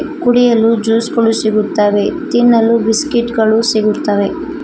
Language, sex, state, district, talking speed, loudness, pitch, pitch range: Kannada, female, Karnataka, Koppal, 90 wpm, -12 LUFS, 225 Hz, 215-240 Hz